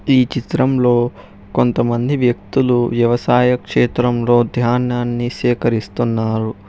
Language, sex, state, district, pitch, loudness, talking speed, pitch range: Telugu, male, Telangana, Hyderabad, 120 Hz, -16 LUFS, 70 wpm, 115-125 Hz